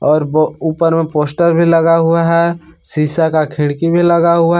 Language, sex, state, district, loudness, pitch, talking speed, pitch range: Hindi, male, Jharkhand, Palamu, -13 LUFS, 165 Hz, 210 wpm, 155-170 Hz